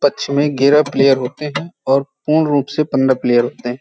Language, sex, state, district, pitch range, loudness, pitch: Hindi, male, Uttar Pradesh, Hamirpur, 135-145 Hz, -16 LUFS, 140 Hz